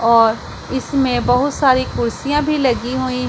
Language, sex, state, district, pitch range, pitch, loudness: Hindi, female, Punjab, Pathankot, 245-270 Hz, 255 Hz, -17 LUFS